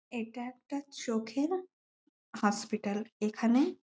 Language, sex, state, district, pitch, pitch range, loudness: Bengali, female, West Bengal, Malda, 240 Hz, 215-280 Hz, -34 LUFS